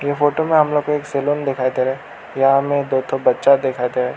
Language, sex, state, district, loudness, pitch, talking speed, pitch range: Hindi, male, Arunachal Pradesh, Lower Dibang Valley, -18 LUFS, 140 Hz, 305 wpm, 130-145 Hz